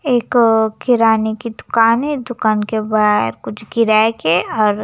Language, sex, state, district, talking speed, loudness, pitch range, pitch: Hindi, female, Himachal Pradesh, Shimla, 150 wpm, -15 LUFS, 215-235 Hz, 220 Hz